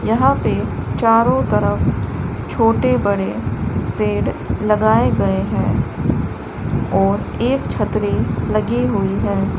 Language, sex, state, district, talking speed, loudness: Hindi, male, Rajasthan, Bikaner, 100 wpm, -18 LUFS